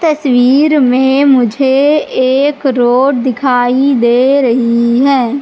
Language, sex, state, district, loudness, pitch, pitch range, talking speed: Hindi, female, Madhya Pradesh, Katni, -10 LUFS, 265 Hz, 245-280 Hz, 100 wpm